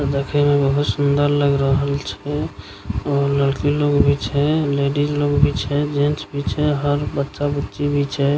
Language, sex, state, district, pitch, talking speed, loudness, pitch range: Maithili, male, Bihar, Begusarai, 145 Hz, 170 wpm, -19 LUFS, 140-145 Hz